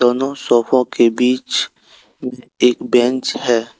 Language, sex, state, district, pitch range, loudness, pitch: Hindi, male, Jharkhand, Deoghar, 120-125 Hz, -16 LUFS, 125 Hz